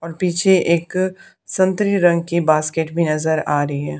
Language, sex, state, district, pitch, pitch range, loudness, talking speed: Hindi, female, Haryana, Charkhi Dadri, 170 Hz, 155-185 Hz, -18 LUFS, 180 wpm